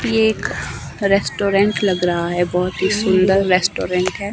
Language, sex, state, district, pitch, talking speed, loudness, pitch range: Hindi, female, Himachal Pradesh, Shimla, 195 Hz, 150 wpm, -17 LUFS, 180-200 Hz